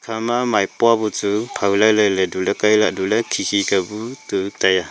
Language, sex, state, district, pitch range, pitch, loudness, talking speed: Wancho, male, Arunachal Pradesh, Longding, 95-110 Hz, 105 Hz, -18 LUFS, 195 wpm